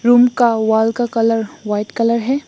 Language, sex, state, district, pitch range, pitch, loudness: Hindi, female, Assam, Hailakandi, 220-240 Hz, 230 Hz, -16 LUFS